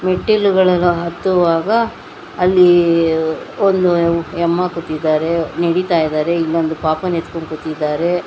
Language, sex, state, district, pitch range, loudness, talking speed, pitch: Kannada, female, Karnataka, Bangalore, 160-180 Hz, -16 LUFS, 95 wpm, 170 Hz